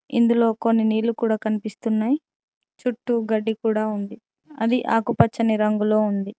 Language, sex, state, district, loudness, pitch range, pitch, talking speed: Telugu, female, Telangana, Mahabubabad, -22 LUFS, 215-235 Hz, 225 Hz, 120 wpm